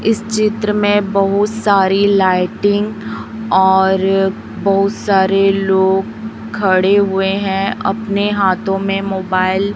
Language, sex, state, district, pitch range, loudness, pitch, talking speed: Hindi, female, Chhattisgarh, Raipur, 190-205 Hz, -14 LUFS, 195 Hz, 110 wpm